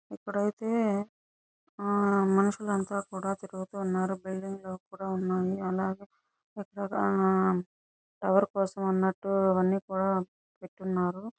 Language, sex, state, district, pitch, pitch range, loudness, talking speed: Telugu, male, Andhra Pradesh, Chittoor, 195 Hz, 185-200 Hz, -30 LUFS, 110 wpm